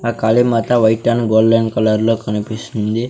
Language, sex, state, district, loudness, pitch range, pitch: Telugu, male, Andhra Pradesh, Sri Satya Sai, -15 LUFS, 110-115 Hz, 115 Hz